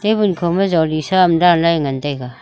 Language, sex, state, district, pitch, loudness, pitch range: Wancho, female, Arunachal Pradesh, Longding, 170 Hz, -15 LUFS, 155-185 Hz